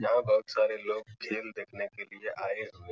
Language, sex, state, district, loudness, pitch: Hindi, male, Uttar Pradesh, Etah, -32 LUFS, 115 Hz